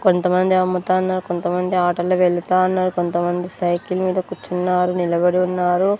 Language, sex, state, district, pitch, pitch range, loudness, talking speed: Telugu, female, Andhra Pradesh, Sri Satya Sai, 180 Hz, 175-185 Hz, -19 LUFS, 120 wpm